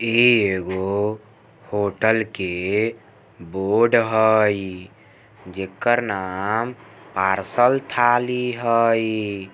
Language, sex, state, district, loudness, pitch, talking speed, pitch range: Maithili, male, Bihar, Samastipur, -20 LUFS, 110 Hz, 70 wpm, 95-115 Hz